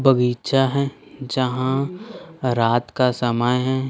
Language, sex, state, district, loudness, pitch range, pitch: Hindi, male, Chhattisgarh, Raipur, -21 LUFS, 125-140 Hz, 130 Hz